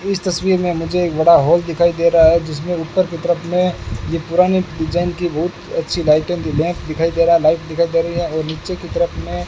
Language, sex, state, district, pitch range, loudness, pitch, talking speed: Hindi, male, Rajasthan, Bikaner, 160-175 Hz, -17 LUFS, 170 Hz, 225 wpm